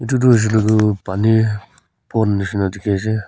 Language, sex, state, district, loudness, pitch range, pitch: Nagamese, female, Nagaland, Kohima, -17 LUFS, 100-110 Hz, 110 Hz